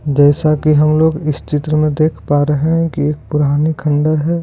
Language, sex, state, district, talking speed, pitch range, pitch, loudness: Hindi, male, Bihar, Begusarai, 215 wpm, 145-155 Hz, 150 Hz, -14 LUFS